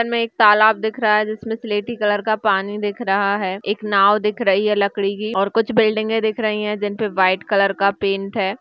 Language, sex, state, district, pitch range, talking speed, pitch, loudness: Hindi, female, Uttar Pradesh, Hamirpur, 200-220 Hz, 235 wpm, 210 Hz, -18 LUFS